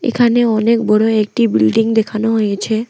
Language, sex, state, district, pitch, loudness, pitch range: Bengali, female, West Bengal, Alipurduar, 225 Hz, -14 LUFS, 215-230 Hz